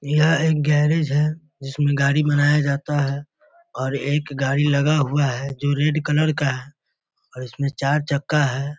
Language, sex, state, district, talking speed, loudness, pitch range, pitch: Hindi, male, Bihar, Muzaffarpur, 170 wpm, -20 LUFS, 140-150 Hz, 145 Hz